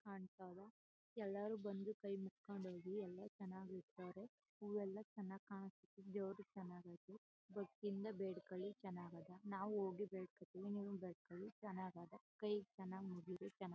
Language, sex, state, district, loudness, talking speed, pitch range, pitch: Kannada, female, Karnataka, Chamarajanagar, -51 LUFS, 115 wpm, 185-205 Hz, 195 Hz